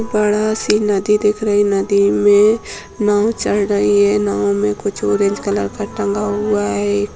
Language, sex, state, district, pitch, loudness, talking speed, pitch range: Hindi, female, Bihar, Saran, 205 Hz, -16 LUFS, 175 wpm, 195-210 Hz